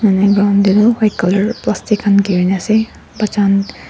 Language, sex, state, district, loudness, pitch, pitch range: Nagamese, female, Nagaland, Dimapur, -14 LUFS, 200 Hz, 195-215 Hz